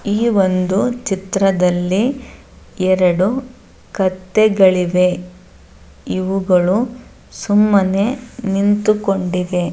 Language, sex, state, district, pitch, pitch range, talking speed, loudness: Kannada, female, Karnataka, Dharwad, 195 Hz, 180-210 Hz, 50 wpm, -16 LUFS